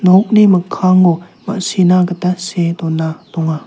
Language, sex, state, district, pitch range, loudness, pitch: Garo, male, Meghalaya, South Garo Hills, 170-185 Hz, -13 LUFS, 180 Hz